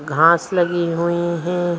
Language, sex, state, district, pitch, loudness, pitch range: Hindi, female, Bihar, Jahanabad, 170 Hz, -18 LUFS, 165-175 Hz